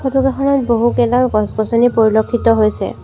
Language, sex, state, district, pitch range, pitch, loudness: Assamese, female, Assam, Sonitpur, 220-255 Hz, 235 Hz, -14 LUFS